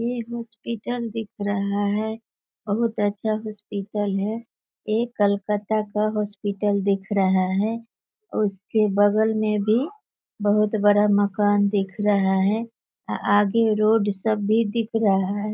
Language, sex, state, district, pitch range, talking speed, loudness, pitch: Hindi, female, Bihar, Sitamarhi, 205-220 Hz, 130 wpm, -23 LUFS, 210 Hz